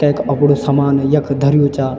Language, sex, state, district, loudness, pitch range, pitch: Garhwali, male, Uttarakhand, Tehri Garhwal, -14 LUFS, 140-145 Hz, 140 Hz